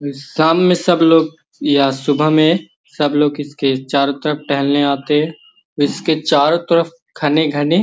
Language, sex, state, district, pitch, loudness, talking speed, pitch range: Magahi, male, Bihar, Gaya, 150 Hz, -15 LUFS, 130 wpm, 145-165 Hz